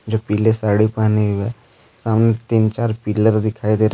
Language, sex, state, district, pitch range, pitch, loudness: Hindi, male, Jharkhand, Deoghar, 105-115 Hz, 110 Hz, -18 LUFS